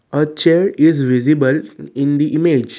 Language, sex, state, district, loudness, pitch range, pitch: English, male, Assam, Kamrup Metropolitan, -15 LUFS, 135-155 Hz, 150 Hz